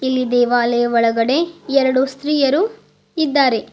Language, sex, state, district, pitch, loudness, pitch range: Kannada, female, Karnataka, Bidar, 260 Hz, -17 LUFS, 245-290 Hz